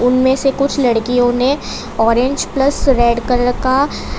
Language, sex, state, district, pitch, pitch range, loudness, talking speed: Hindi, female, Gujarat, Valsad, 250 Hz, 245-275 Hz, -15 LUFS, 145 wpm